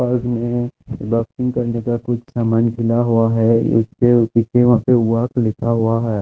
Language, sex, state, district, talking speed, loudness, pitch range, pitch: Hindi, male, Chhattisgarh, Raipur, 165 wpm, -17 LUFS, 115-120 Hz, 115 Hz